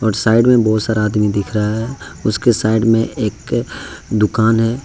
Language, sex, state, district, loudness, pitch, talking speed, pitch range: Hindi, male, Jharkhand, Ranchi, -16 LUFS, 110 Hz, 160 wpm, 105-115 Hz